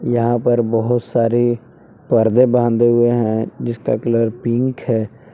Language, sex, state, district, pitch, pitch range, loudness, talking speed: Hindi, male, Jharkhand, Palamu, 120 Hz, 115-120 Hz, -17 LUFS, 135 wpm